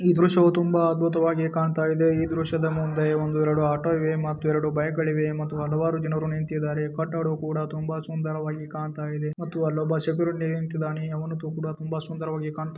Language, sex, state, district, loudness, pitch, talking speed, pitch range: Kannada, male, Karnataka, Dharwad, -25 LUFS, 155 Hz, 175 wpm, 155-160 Hz